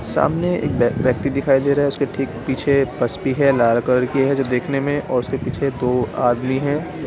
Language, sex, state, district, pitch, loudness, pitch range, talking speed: Hindi, male, Delhi, New Delhi, 135 Hz, -19 LUFS, 125-140 Hz, 210 wpm